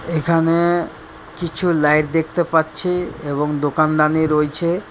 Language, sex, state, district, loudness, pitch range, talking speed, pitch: Bengali, male, West Bengal, Purulia, -18 LUFS, 150-170 Hz, 110 wpm, 160 Hz